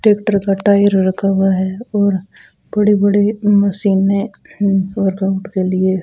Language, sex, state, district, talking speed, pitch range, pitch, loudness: Hindi, female, Rajasthan, Bikaner, 130 wpm, 190-205 Hz, 200 Hz, -15 LUFS